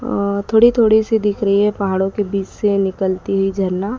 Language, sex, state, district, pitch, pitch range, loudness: Hindi, female, Madhya Pradesh, Dhar, 200 Hz, 195-210 Hz, -16 LUFS